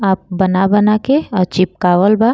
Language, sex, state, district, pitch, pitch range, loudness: Bhojpuri, female, Uttar Pradesh, Gorakhpur, 195 Hz, 185-215 Hz, -14 LUFS